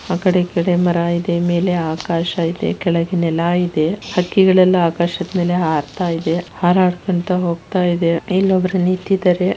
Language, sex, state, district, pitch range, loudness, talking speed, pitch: Kannada, female, Karnataka, Shimoga, 170-185 Hz, -17 LUFS, 120 wpm, 175 Hz